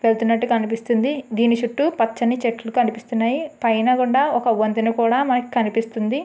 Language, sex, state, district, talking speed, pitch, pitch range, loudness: Telugu, female, Andhra Pradesh, Srikakulam, 135 wpm, 235 Hz, 225-250 Hz, -20 LUFS